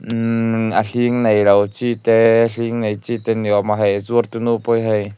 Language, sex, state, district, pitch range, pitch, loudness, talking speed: Mizo, male, Mizoram, Aizawl, 105-115 Hz, 115 Hz, -17 LUFS, 255 wpm